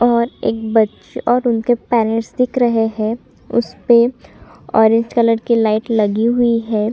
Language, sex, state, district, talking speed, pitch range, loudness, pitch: Hindi, female, Chhattisgarh, Sukma, 155 wpm, 220-240 Hz, -16 LUFS, 230 Hz